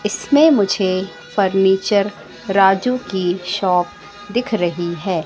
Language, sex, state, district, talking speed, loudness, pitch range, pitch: Hindi, female, Madhya Pradesh, Katni, 105 wpm, -17 LUFS, 185-205 Hz, 195 Hz